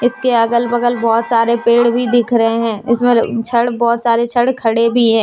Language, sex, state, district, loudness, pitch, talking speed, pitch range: Hindi, female, Jharkhand, Deoghar, -14 LUFS, 235 Hz, 220 wpm, 230-240 Hz